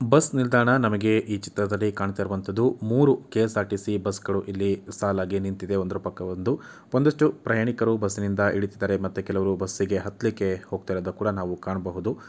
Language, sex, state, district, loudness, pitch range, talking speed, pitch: Kannada, male, Karnataka, Chamarajanagar, -25 LUFS, 95-110 Hz, 140 wpm, 100 Hz